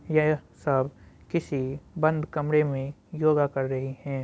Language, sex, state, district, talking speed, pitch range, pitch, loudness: Hindi, male, Bihar, Muzaffarpur, 140 wpm, 135-155 Hz, 145 Hz, -27 LUFS